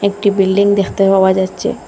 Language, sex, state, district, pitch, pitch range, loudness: Bengali, female, Assam, Hailakandi, 195 Hz, 190-200 Hz, -13 LUFS